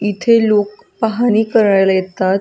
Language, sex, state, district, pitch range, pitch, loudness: Marathi, female, Maharashtra, Solapur, 195-225 Hz, 210 Hz, -14 LUFS